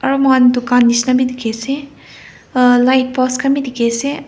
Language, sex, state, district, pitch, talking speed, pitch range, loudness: Nagamese, female, Nagaland, Kohima, 255 Hz, 170 wpm, 245-270 Hz, -14 LUFS